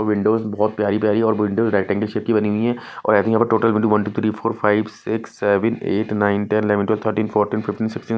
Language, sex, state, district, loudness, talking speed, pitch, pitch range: Hindi, male, Odisha, Nuapada, -19 LUFS, 270 wpm, 110 Hz, 105-110 Hz